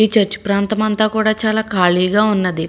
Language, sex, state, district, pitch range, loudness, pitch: Telugu, female, Andhra Pradesh, Srikakulam, 195-215 Hz, -16 LUFS, 215 Hz